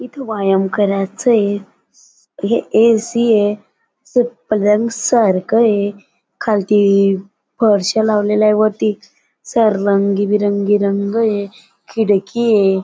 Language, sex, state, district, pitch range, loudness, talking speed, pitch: Marathi, female, Maharashtra, Dhule, 200-220 Hz, -15 LUFS, 95 wpm, 210 Hz